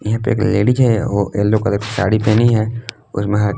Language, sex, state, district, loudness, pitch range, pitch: Hindi, male, Jharkhand, Palamu, -16 LUFS, 100-115 Hz, 110 Hz